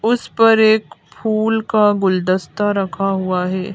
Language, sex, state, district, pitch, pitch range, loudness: Hindi, female, Madhya Pradesh, Bhopal, 205 Hz, 185-220 Hz, -16 LUFS